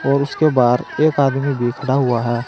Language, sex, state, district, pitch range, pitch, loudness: Hindi, male, Uttar Pradesh, Saharanpur, 120-140 Hz, 135 Hz, -17 LUFS